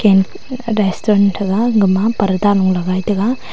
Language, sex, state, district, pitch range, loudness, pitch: Wancho, female, Arunachal Pradesh, Longding, 190-225 Hz, -15 LUFS, 205 Hz